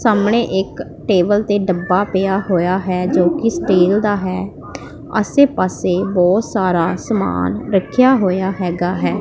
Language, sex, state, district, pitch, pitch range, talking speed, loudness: Punjabi, female, Punjab, Pathankot, 190 Hz, 180-205 Hz, 135 wpm, -16 LUFS